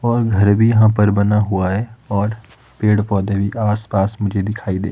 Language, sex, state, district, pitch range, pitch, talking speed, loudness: Hindi, male, Himachal Pradesh, Shimla, 100-110 Hz, 105 Hz, 205 wpm, -17 LUFS